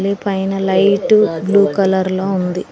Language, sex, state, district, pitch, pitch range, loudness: Telugu, female, Telangana, Mahabubabad, 195 Hz, 190-200 Hz, -15 LUFS